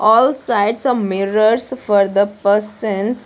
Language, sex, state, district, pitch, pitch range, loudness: English, female, Punjab, Kapurthala, 215 Hz, 200-240 Hz, -16 LUFS